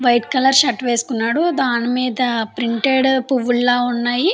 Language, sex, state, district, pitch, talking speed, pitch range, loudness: Telugu, female, Andhra Pradesh, Anantapur, 245 Hz, 110 wpm, 240-265 Hz, -17 LUFS